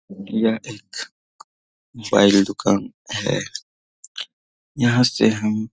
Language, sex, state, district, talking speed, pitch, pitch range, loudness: Hindi, male, Bihar, Saran, 95 wpm, 110 Hz, 105-120 Hz, -20 LUFS